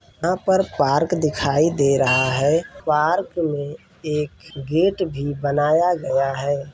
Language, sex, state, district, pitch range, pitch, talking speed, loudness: Hindi, male, Bihar, Saran, 140-165 Hz, 150 Hz, 140 wpm, -20 LUFS